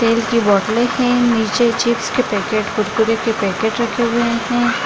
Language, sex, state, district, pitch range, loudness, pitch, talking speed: Hindi, female, Bihar, Gaya, 220-235 Hz, -16 LUFS, 230 Hz, 135 wpm